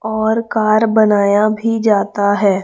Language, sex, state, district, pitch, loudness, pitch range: Hindi, female, Chhattisgarh, Raipur, 215 Hz, -14 LUFS, 205-220 Hz